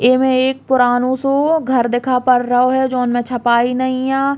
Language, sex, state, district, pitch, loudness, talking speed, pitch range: Bundeli, female, Uttar Pradesh, Hamirpur, 255 Hz, -15 LUFS, 220 wpm, 245-265 Hz